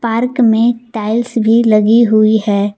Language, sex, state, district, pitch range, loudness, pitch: Hindi, female, Jharkhand, Palamu, 215-235 Hz, -12 LUFS, 225 Hz